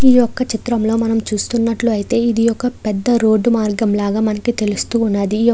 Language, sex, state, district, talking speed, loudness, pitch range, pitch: Telugu, female, Andhra Pradesh, Chittoor, 140 wpm, -16 LUFS, 215-235 Hz, 225 Hz